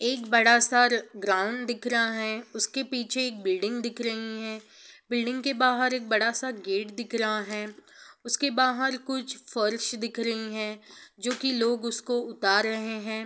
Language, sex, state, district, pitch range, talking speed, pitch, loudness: Hindi, female, Bihar, Sitamarhi, 220-245 Hz, 180 wpm, 235 Hz, -27 LUFS